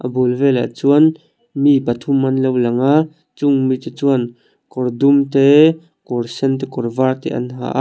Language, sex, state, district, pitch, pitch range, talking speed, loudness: Mizo, male, Mizoram, Aizawl, 135 Hz, 125-140 Hz, 185 wpm, -16 LUFS